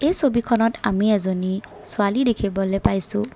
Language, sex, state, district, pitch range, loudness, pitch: Assamese, female, Assam, Kamrup Metropolitan, 195-235 Hz, -21 LUFS, 210 Hz